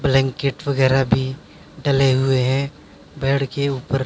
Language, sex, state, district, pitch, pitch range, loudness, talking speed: Hindi, male, Haryana, Jhajjar, 135 Hz, 135-140 Hz, -20 LUFS, 150 wpm